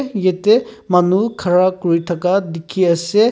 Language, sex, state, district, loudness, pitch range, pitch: Nagamese, male, Nagaland, Kohima, -16 LUFS, 175-210 Hz, 185 Hz